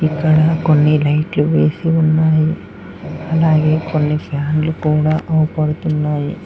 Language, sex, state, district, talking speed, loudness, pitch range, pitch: Telugu, male, Telangana, Mahabubabad, 85 wpm, -15 LUFS, 150-160 Hz, 155 Hz